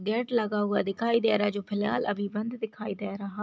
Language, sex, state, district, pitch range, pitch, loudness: Hindi, female, Chhattisgarh, Jashpur, 205-220 Hz, 210 Hz, -29 LUFS